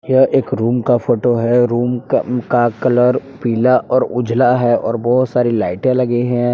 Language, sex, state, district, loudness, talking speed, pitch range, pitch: Hindi, male, Jharkhand, Palamu, -15 LUFS, 185 wpm, 120-125 Hz, 120 Hz